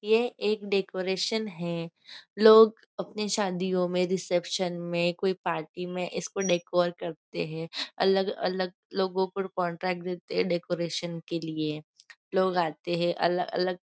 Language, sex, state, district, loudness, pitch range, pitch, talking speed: Hindi, female, Maharashtra, Nagpur, -28 LUFS, 175-190 Hz, 180 Hz, 140 wpm